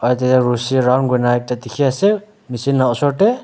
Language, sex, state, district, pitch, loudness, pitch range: Nagamese, male, Nagaland, Dimapur, 130 Hz, -16 LUFS, 125-145 Hz